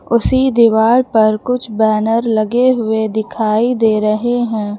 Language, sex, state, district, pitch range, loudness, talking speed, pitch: Hindi, female, Uttar Pradesh, Lucknow, 215-240 Hz, -14 LUFS, 140 wpm, 225 Hz